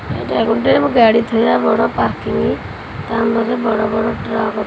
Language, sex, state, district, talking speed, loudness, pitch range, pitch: Odia, female, Odisha, Khordha, 165 wpm, -16 LUFS, 220-230 Hz, 225 Hz